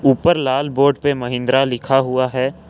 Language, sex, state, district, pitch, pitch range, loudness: Hindi, male, Jharkhand, Ranchi, 135 Hz, 130-140 Hz, -17 LUFS